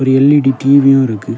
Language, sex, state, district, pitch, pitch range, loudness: Tamil, male, Tamil Nadu, Kanyakumari, 135 Hz, 130-140 Hz, -10 LUFS